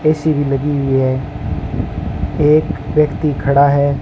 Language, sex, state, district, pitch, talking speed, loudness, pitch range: Hindi, male, Rajasthan, Bikaner, 140 Hz, 135 wpm, -16 LUFS, 120-150 Hz